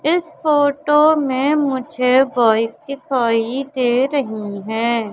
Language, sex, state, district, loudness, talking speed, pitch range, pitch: Hindi, female, Madhya Pradesh, Katni, -17 LUFS, 95 wpm, 230-290 Hz, 265 Hz